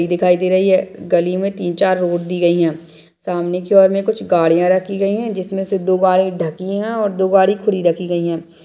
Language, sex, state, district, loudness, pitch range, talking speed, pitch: Hindi, female, Uttarakhand, Tehri Garhwal, -16 LUFS, 175-195 Hz, 230 wpm, 185 Hz